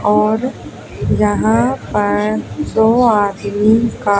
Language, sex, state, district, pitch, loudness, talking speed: Hindi, female, Haryana, Charkhi Dadri, 205 Hz, -15 LUFS, 85 wpm